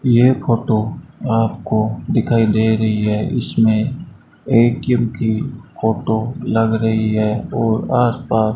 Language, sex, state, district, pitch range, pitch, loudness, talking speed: Hindi, male, Rajasthan, Bikaner, 110-120 Hz, 115 Hz, -17 LUFS, 120 wpm